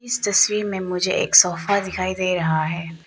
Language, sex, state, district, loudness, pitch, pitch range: Hindi, female, Arunachal Pradesh, Papum Pare, -19 LUFS, 185 Hz, 175-200 Hz